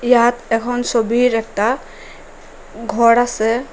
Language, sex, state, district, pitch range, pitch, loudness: Bengali, female, Assam, Hailakandi, 225-245 Hz, 235 Hz, -16 LUFS